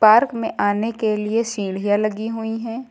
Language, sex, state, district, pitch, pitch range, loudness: Hindi, female, Uttar Pradesh, Lucknow, 220 Hz, 210-230 Hz, -21 LUFS